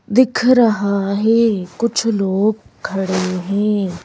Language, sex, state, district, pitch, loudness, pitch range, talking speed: Hindi, female, Madhya Pradesh, Bhopal, 205 Hz, -17 LUFS, 190-230 Hz, 105 wpm